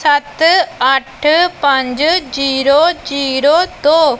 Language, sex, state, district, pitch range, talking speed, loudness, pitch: Punjabi, female, Punjab, Pathankot, 270-325 Hz, 85 wpm, -13 LUFS, 290 Hz